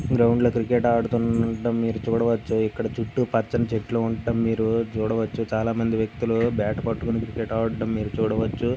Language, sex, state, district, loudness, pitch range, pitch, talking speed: Telugu, male, Andhra Pradesh, Visakhapatnam, -24 LUFS, 110-115 Hz, 115 Hz, 130 wpm